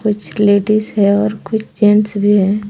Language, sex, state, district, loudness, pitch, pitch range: Hindi, female, Jharkhand, Deoghar, -14 LUFS, 210 Hz, 205-210 Hz